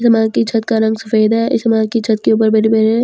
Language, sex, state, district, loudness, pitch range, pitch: Hindi, female, Delhi, New Delhi, -14 LUFS, 220-230 Hz, 225 Hz